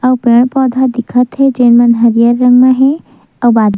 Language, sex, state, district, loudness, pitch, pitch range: Chhattisgarhi, female, Chhattisgarh, Sukma, -9 LUFS, 245 Hz, 235-260 Hz